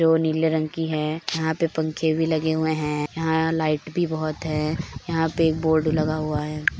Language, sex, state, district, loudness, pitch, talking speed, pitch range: Hindi, female, Bihar, Begusarai, -24 LUFS, 160 Hz, 210 wpm, 155-160 Hz